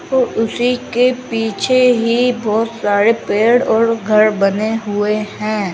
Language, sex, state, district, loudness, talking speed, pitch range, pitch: Hindi, female, Uttarakhand, Tehri Garhwal, -15 LUFS, 135 wpm, 215-245 Hz, 225 Hz